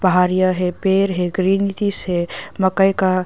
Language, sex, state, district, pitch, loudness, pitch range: Hindi, female, Arunachal Pradesh, Longding, 185 Hz, -17 LUFS, 180-195 Hz